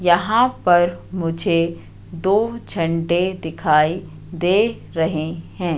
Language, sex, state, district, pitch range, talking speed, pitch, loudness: Hindi, female, Madhya Pradesh, Katni, 165-185 Hz, 95 wpm, 175 Hz, -19 LUFS